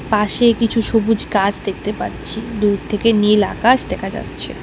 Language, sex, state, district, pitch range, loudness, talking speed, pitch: Bengali, female, West Bengal, Alipurduar, 210-230 Hz, -17 LUFS, 155 wpm, 220 Hz